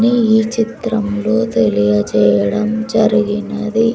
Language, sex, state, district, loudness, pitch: Telugu, female, Andhra Pradesh, Sri Satya Sai, -15 LUFS, 215 Hz